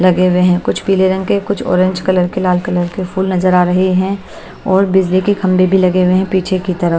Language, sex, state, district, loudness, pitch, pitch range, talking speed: Hindi, female, Odisha, Malkangiri, -13 LUFS, 185 Hz, 180-190 Hz, 260 wpm